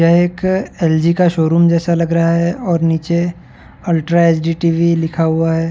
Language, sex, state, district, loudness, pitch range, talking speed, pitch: Hindi, male, Uttar Pradesh, Varanasi, -14 LUFS, 165-170 Hz, 190 wpm, 170 Hz